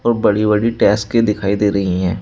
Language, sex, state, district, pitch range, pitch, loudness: Hindi, male, Uttar Pradesh, Shamli, 100-115 Hz, 105 Hz, -15 LUFS